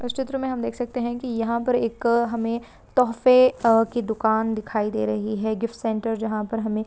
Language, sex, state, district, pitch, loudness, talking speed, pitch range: Hindi, female, Maharashtra, Solapur, 230 Hz, -23 LUFS, 210 wpm, 220-245 Hz